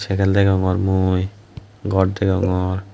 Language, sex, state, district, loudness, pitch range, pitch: Chakma, male, Tripura, West Tripura, -19 LUFS, 95-100 Hz, 95 Hz